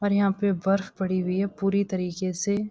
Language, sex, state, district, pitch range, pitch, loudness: Hindi, female, Uttarakhand, Uttarkashi, 185-200 Hz, 195 Hz, -26 LUFS